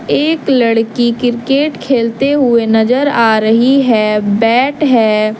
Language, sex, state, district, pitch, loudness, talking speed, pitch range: Hindi, female, Jharkhand, Deoghar, 240 Hz, -11 LUFS, 120 wpm, 225-270 Hz